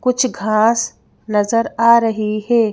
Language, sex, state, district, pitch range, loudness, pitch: Hindi, female, Madhya Pradesh, Bhopal, 215-235 Hz, -16 LUFS, 230 Hz